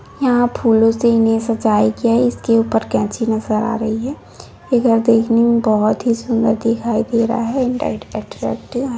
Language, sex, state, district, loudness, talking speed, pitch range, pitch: Hindi, female, Bihar, Begusarai, -16 LUFS, 180 wpm, 225-240 Hz, 230 Hz